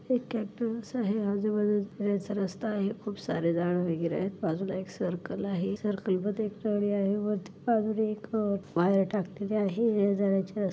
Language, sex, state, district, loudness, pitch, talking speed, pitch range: Marathi, female, Maharashtra, Pune, -30 LUFS, 205 Hz, 160 wpm, 195-215 Hz